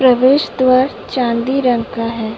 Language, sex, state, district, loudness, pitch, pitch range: Hindi, female, Uttar Pradesh, Budaun, -15 LUFS, 255 Hz, 235-260 Hz